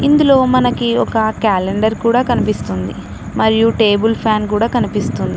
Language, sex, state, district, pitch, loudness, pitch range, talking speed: Telugu, female, Telangana, Mahabubabad, 220 Hz, -14 LUFS, 205-240 Hz, 125 wpm